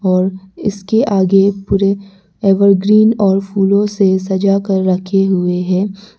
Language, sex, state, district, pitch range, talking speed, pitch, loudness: Hindi, male, Arunachal Pradesh, Lower Dibang Valley, 190-200 Hz, 125 wpm, 195 Hz, -14 LUFS